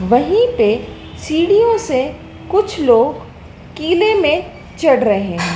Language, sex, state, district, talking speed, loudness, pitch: Hindi, female, Madhya Pradesh, Dhar, 110 wpm, -15 LUFS, 320 Hz